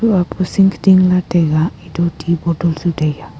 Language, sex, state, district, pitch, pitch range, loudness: Wancho, female, Arunachal Pradesh, Longding, 170 Hz, 160-185 Hz, -15 LUFS